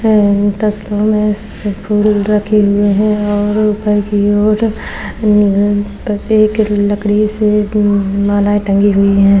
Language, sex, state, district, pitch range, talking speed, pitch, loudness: Hindi, female, Maharashtra, Chandrapur, 205-210 Hz, 120 wpm, 205 Hz, -13 LUFS